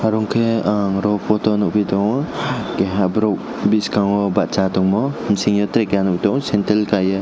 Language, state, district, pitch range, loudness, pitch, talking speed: Kokborok, Tripura, West Tripura, 100-110 Hz, -18 LUFS, 105 Hz, 160 wpm